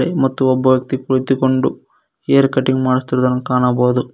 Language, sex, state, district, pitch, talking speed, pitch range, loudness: Kannada, male, Karnataka, Koppal, 130 Hz, 115 wpm, 125-130 Hz, -16 LUFS